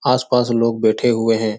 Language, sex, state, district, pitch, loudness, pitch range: Hindi, male, Bihar, Jahanabad, 115 Hz, -17 LUFS, 110-125 Hz